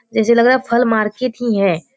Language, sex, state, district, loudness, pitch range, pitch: Hindi, female, Bihar, Kishanganj, -15 LUFS, 215-250 Hz, 235 Hz